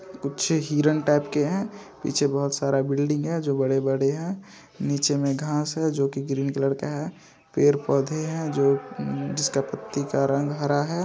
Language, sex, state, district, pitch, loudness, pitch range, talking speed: Hindi, male, Bihar, Saharsa, 145 Hz, -25 LUFS, 140-155 Hz, 180 wpm